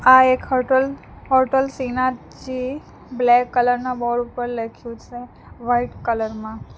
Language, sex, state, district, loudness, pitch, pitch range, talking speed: Gujarati, female, Gujarat, Valsad, -20 LUFS, 250 Hz, 240-260 Hz, 135 wpm